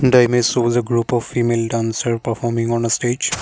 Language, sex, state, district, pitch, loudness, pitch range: English, male, Assam, Kamrup Metropolitan, 120 Hz, -18 LUFS, 115-120 Hz